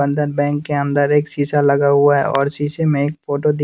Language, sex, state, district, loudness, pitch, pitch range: Hindi, male, Bihar, West Champaran, -17 LUFS, 145 Hz, 140-145 Hz